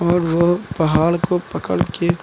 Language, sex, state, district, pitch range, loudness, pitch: Hindi, male, Uttar Pradesh, Lucknow, 165-175 Hz, -18 LUFS, 170 Hz